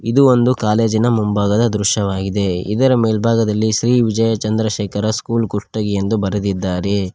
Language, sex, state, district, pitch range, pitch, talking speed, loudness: Kannada, male, Karnataka, Koppal, 100-115 Hz, 110 Hz, 110 wpm, -16 LUFS